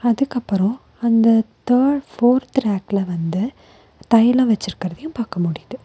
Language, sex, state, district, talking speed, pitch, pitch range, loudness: Tamil, female, Tamil Nadu, Nilgiris, 105 wpm, 230 Hz, 195-250 Hz, -19 LUFS